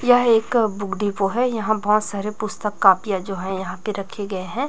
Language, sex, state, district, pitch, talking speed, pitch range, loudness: Hindi, female, Chhattisgarh, Raipur, 210 Hz, 220 wpm, 195-220 Hz, -21 LUFS